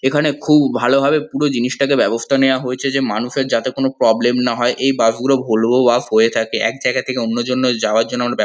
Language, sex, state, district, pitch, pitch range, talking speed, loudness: Bengali, male, West Bengal, North 24 Parganas, 125 Hz, 120-135 Hz, 215 wpm, -16 LUFS